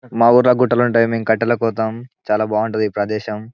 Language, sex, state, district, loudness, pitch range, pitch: Telugu, male, Telangana, Nalgonda, -17 LUFS, 110-120 Hz, 115 Hz